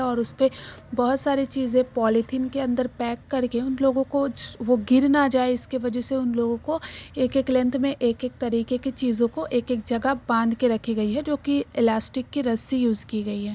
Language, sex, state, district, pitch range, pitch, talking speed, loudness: Hindi, female, Uttar Pradesh, Jyotiba Phule Nagar, 235-270 Hz, 255 Hz, 220 wpm, -24 LUFS